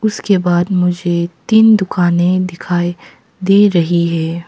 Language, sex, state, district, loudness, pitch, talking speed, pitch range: Hindi, female, Arunachal Pradesh, Papum Pare, -13 LUFS, 175 Hz, 120 wpm, 175-195 Hz